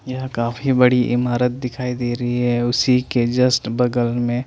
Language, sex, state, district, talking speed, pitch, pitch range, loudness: Hindi, male, Chandigarh, Chandigarh, 175 wpm, 125 Hz, 120-125 Hz, -19 LUFS